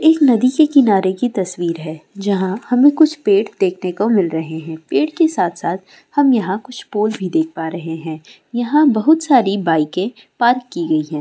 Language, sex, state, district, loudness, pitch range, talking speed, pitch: Hindi, female, Andhra Pradesh, Guntur, -16 LUFS, 180-270 Hz, 205 wpm, 210 Hz